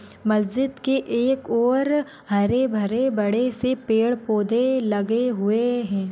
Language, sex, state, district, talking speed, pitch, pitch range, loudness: Hindi, female, Maharashtra, Nagpur, 135 wpm, 235 Hz, 215-260 Hz, -22 LUFS